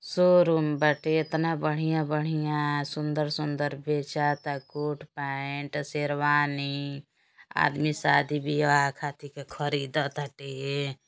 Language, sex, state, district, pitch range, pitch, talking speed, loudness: Hindi, male, Uttar Pradesh, Deoria, 140-150 Hz, 145 Hz, 75 wpm, -27 LUFS